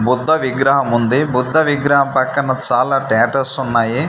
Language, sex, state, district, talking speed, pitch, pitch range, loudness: Telugu, male, Andhra Pradesh, Manyam, 130 wpm, 130 Hz, 125-140 Hz, -15 LUFS